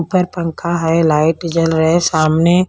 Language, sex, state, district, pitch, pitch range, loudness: Hindi, female, Punjab, Pathankot, 165 Hz, 160-170 Hz, -15 LUFS